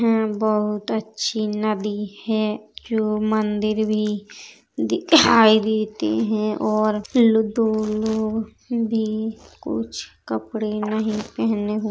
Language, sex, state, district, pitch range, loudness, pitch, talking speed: Hindi, male, Uttar Pradesh, Hamirpur, 210-220 Hz, -21 LUFS, 215 Hz, 100 wpm